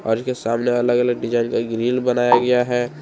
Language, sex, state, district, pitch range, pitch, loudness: Hindi, male, Jharkhand, Palamu, 115-125 Hz, 120 Hz, -19 LUFS